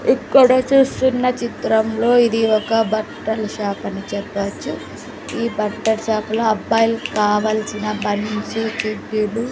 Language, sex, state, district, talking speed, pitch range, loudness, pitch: Telugu, female, Andhra Pradesh, Sri Satya Sai, 115 wpm, 215-230 Hz, -18 LUFS, 220 Hz